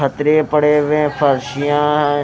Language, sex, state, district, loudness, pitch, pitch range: Hindi, male, Haryana, Rohtak, -15 LUFS, 150 Hz, 145-150 Hz